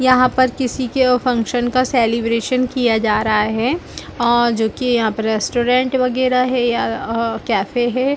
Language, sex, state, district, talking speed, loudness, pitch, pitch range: Hindi, female, Chhattisgarh, Balrampur, 175 wpm, -17 LUFS, 245 Hz, 230-255 Hz